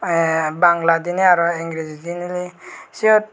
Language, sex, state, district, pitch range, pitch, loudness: Chakma, male, Tripura, West Tripura, 165-180 Hz, 170 Hz, -18 LUFS